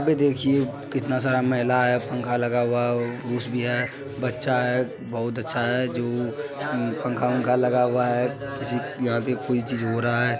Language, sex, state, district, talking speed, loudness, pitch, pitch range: Maithili, male, Bihar, Supaul, 185 wpm, -24 LUFS, 125 Hz, 120-130 Hz